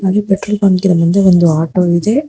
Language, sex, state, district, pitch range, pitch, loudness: Kannada, female, Karnataka, Bangalore, 175-200 Hz, 190 Hz, -12 LUFS